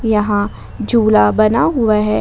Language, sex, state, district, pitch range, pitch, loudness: Hindi, female, Jharkhand, Ranchi, 210-230 Hz, 215 Hz, -14 LUFS